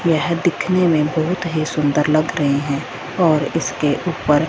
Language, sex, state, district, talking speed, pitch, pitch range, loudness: Hindi, female, Punjab, Fazilka, 160 wpm, 155 Hz, 150-170 Hz, -18 LUFS